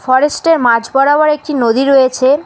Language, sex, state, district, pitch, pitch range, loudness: Bengali, female, West Bengal, Alipurduar, 270 Hz, 255-300 Hz, -11 LUFS